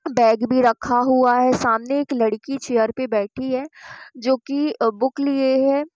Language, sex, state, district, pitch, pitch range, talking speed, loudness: Hindi, female, Bihar, Sitamarhi, 255 Hz, 235-275 Hz, 170 wpm, -20 LUFS